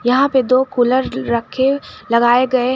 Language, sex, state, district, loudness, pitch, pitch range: Hindi, female, Jharkhand, Garhwa, -16 LUFS, 255 Hz, 245-260 Hz